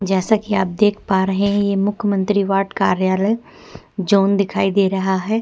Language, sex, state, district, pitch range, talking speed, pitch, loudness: Hindi, female, Chhattisgarh, Korba, 190-205 Hz, 165 wpm, 200 Hz, -18 LUFS